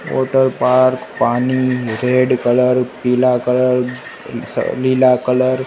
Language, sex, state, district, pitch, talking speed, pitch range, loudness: Hindi, male, Gujarat, Gandhinagar, 125 Hz, 125 wpm, 125-130 Hz, -15 LUFS